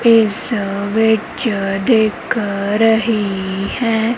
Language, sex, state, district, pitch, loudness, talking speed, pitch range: Punjabi, female, Punjab, Kapurthala, 220 Hz, -16 LUFS, 70 wpm, 200-225 Hz